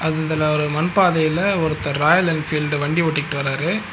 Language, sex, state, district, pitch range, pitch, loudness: Tamil, male, Tamil Nadu, Nilgiris, 150-170 Hz, 155 Hz, -19 LUFS